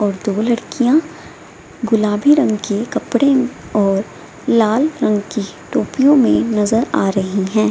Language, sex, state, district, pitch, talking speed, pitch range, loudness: Hindi, female, Bihar, Samastipur, 220 Hz, 130 wpm, 205-255 Hz, -16 LUFS